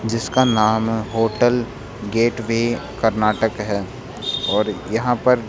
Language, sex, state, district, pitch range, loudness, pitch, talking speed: Hindi, male, Rajasthan, Jaipur, 110-120 Hz, -20 LUFS, 115 Hz, 100 wpm